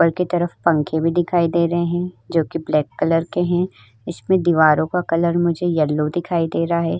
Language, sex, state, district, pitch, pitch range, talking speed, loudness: Hindi, female, Uttar Pradesh, Budaun, 170 Hz, 160-175 Hz, 205 wpm, -19 LUFS